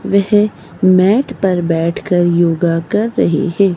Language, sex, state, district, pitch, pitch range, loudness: Hindi, female, Himachal Pradesh, Shimla, 185 Hz, 170-205 Hz, -14 LUFS